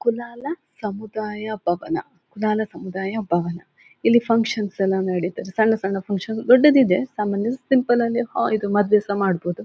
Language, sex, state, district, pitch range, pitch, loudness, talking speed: Kannada, female, Karnataka, Dakshina Kannada, 195-235 Hz, 215 Hz, -21 LUFS, 145 wpm